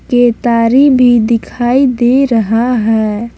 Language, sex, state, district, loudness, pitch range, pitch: Hindi, female, Jharkhand, Palamu, -10 LUFS, 230-250 Hz, 240 Hz